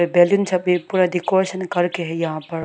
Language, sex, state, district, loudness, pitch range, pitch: Hindi, female, Arunachal Pradesh, Lower Dibang Valley, -19 LUFS, 170-185 Hz, 175 Hz